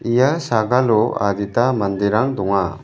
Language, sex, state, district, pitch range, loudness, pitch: Garo, male, Meghalaya, West Garo Hills, 100-125 Hz, -18 LUFS, 110 Hz